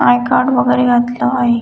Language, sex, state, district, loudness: Marathi, female, Maharashtra, Dhule, -13 LUFS